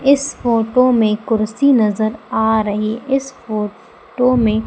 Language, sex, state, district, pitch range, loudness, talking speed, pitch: Hindi, female, Madhya Pradesh, Umaria, 215-255 Hz, -16 LUFS, 140 wpm, 225 Hz